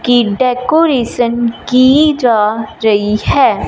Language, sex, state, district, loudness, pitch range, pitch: Hindi, female, Punjab, Fazilka, -12 LUFS, 220-255 Hz, 240 Hz